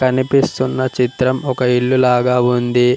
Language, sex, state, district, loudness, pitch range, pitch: Telugu, male, Telangana, Mahabubabad, -15 LUFS, 125-130 Hz, 125 Hz